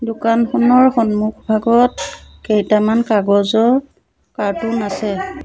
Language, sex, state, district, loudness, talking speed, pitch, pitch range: Assamese, female, Assam, Sonitpur, -15 LUFS, 75 wpm, 225 Hz, 210-240 Hz